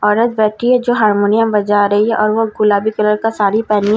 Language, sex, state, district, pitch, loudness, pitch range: Hindi, female, Bihar, Katihar, 215 Hz, -14 LUFS, 210-225 Hz